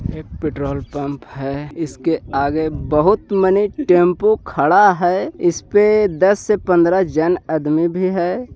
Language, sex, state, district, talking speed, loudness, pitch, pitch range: Hindi, male, Bihar, Jahanabad, 135 wpm, -17 LUFS, 175 Hz, 150-190 Hz